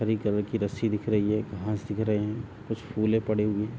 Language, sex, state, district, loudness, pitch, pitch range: Hindi, male, Uttar Pradesh, Jalaun, -28 LUFS, 105 Hz, 105-110 Hz